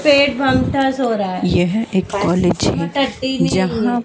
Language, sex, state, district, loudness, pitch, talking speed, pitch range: Hindi, female, Madhya Pradesh, Dhar, -17 LUFS, 230 Hz, 75 wpm, 190-265 Hz